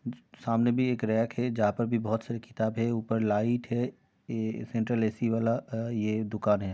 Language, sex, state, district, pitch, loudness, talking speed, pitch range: Hindi, male, Uttar Pradesh, Jyotiba Phule Nagar, 115 Hz, -30 LUFS, 220 wpm, 110-120 Hz